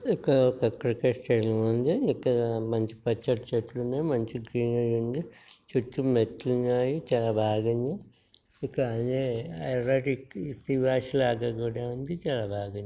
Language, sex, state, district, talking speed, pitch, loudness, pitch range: Telugu, female, Telangana, Nalgonda, 120 wpm, 120 Hz, -28 LUFS, 115-130 Hz